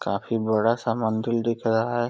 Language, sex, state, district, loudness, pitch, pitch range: Hindi, male, Uttar Pradesh, Deoria, -24 LUFS, 115 Hz, 110-115 Hz